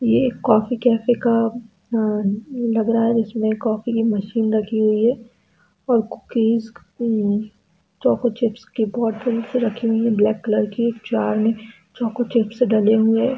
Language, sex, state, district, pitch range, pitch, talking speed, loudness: Hindi, female, Bihar, East Champaran, 215-235 Hz, 225 Hz, 150 wpm, -20 LUFS